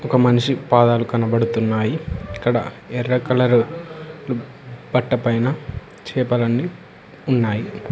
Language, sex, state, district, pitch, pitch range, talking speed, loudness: Telugu, male, Telangana, Hyderabad, 120 Hz, 115-130 Hz, 85 wpm, -20 LUFS